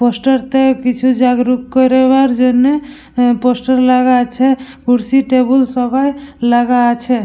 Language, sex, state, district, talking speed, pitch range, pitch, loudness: Bengali, female, West Bengal, Purulia, 115 wpm, 245-265 Hz, 255 Hz, -12 LUFS